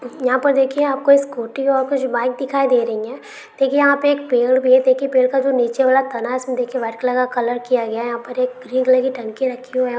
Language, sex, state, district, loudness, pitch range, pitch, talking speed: Maithili, female, Bihar, Supaul, -18 LUFS, 245-270 Hz, 255 Hz, 270 wpm